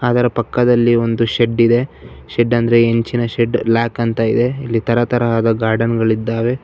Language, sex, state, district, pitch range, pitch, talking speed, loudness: Kannada, male, Karnataka, Bangalore, 115-120 Hz, 115 Hz, 145 wpm, -15 LUFS